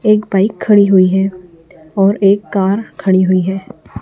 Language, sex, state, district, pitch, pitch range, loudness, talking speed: Hindi, female, Chhattisgarh, Raipur, 195 Hz, 185-205 Hz, -13 LUFS, 165 wpm